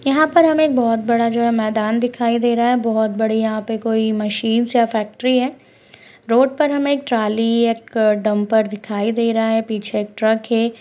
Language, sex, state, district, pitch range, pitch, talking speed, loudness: Hindi, female, West Bengal, Purulia, 220-240 Hz, 230 Hz, 195 wpm, -17 LUFS